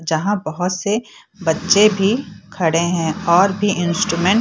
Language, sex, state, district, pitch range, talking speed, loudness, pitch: Hindi, female, Bihar, Purnia, 170-205 Hz, 150 wpm, -17 LUFS, 185 Hz